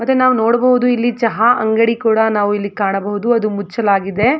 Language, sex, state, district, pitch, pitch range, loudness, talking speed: Kannada, female, Karnataka, Mysore, 225 Hz, 205-240 Hz, -15 LUFS, 165 wpm